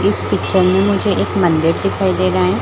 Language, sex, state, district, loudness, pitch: Hindi, female, Chhattisgarh, Bilaspur, -15 LUFS, 165 Hz